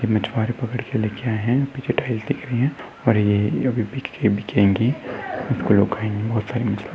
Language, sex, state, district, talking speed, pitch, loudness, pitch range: Hindi, male, Maharashtra, Nagpur, 140 wpm, 115 Hz, -22 LUFS, 105-125 Hz